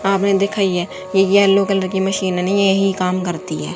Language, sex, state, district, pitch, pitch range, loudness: Hindi, female, Haryana, Charkhi Dadri, 195 Hz, 185-195 Hz, -17 LUFS